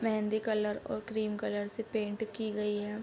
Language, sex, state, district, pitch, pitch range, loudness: Hindi, female, Bihar, Sitamarhi, 215 Hz, 210-220 Hz, -34 LUFS